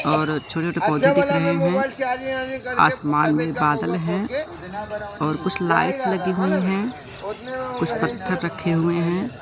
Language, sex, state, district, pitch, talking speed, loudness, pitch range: Hindi, male, Madhya Pradesh, Katni, 185 Hz, 135 wpm, -19 LUFS, 165-250 Hz